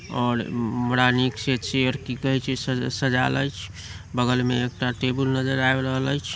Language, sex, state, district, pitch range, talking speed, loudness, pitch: Maithili, male, Bihar, Samastipur, 125-130 Hz, 180 wpm, -24 LUFS, 125 Hz